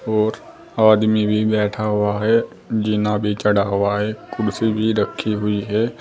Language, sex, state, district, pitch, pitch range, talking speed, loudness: Hindi, male, Uttar Pradesh, Saharanpur, 105 Hz, 105-110 Hz, 160 wpm, -19 LUFS